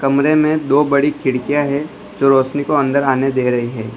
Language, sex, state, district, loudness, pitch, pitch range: Hindi, male, Gujarat, Valsad, -16 LUFS, 140 Hz, 130-145 Hz